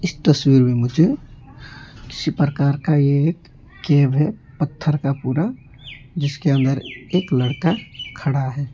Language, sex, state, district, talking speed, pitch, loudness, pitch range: Hindi, male, West Bengal, Alipurduar, 130 wpm, 140 Hz, -19 LUFS, 130-150 Hz